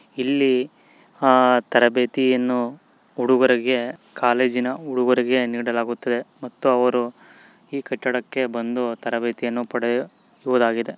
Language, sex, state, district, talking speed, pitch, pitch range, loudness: Kannada, male, Karnataka, Mysore, 75 wpm, 125 Hz, 120-130 Hz, -21 LUFS